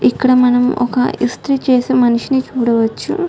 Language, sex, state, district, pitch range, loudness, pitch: Telugu, female, Telangana, Karimnagar, 240-260 Hz, -14 LUFS, 250 Hz